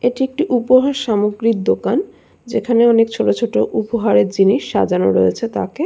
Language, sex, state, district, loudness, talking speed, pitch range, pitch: Bengali, female, West Bengal, Jalpaiguri, -16 LUFS, 145 wpm, 195-245 Hz, 230 Hz